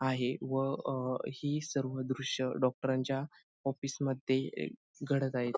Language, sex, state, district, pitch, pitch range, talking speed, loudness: Marathi, male, Maharashtra, Sindhudurg, 135 Hz, 130-135 Hz, 120 wpm, -35 LUFS